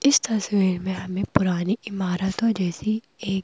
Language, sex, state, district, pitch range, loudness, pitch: Hindi, female, Madhya Pradesh, Bhopal, 185-215 Hz, -24 LUFS, 195 Hz